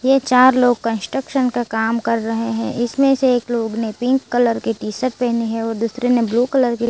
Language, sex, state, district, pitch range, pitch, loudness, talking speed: Hindi, female, Gujarat, Valsad, 225-255 Hz, 240 Hz, -18 LUFS, 245 wpm